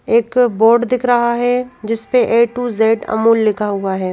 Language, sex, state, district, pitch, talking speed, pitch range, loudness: Hindi, female, Madhya Pradesh, Bhopal, 230 Hz, 205 wpm, 220-245 Hz, -15 LUFS